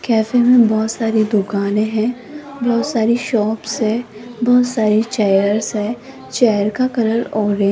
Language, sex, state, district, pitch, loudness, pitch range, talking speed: Hindi, female, Rajasthan, Jaipur, 225 Hz, -16 LUFS, 215-245 Hz, 150 wpm